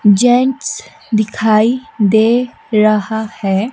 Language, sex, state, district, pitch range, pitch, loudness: Hindi, female, Himachal Pradesh, Shimla, 215-250 Hz, 220 Hz, -14 LUFS